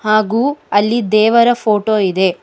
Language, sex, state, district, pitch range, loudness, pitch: Kannada, female, Karnataka, Bangalore, 205-235 Hz, -14 LUFS, 215 Hz